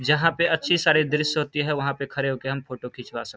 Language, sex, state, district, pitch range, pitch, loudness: Hindi, male, Bihar, Samastipur, 135-155 Hz, 150 Hz, -23 LUFS